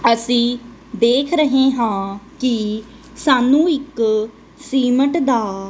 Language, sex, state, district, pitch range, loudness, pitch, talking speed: Punjabi, female, Punjab, Kapurthala, 225-270 Hz, -17 LUFS, 245 Hz, 105 wpm